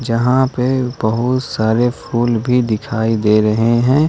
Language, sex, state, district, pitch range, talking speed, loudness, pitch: Hindi, male, Jharkhand, Ranchi, 110-125 Hz, 145 wpm, -16 LUFS, 120 Hz